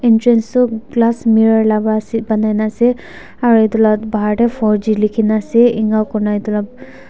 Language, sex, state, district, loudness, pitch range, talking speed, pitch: Nagamese, female, Nagaland, Dimapur, -14 LUFS, 215-230 Hz, 195 wpm, 220 Hz